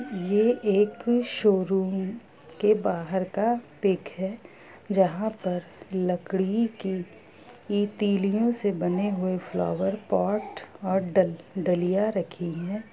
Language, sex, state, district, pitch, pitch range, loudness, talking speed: Hindi, female, Bihar, Gopalganj, 195 Hz, 180-210 Hz, -26 LUFS, 100 wpm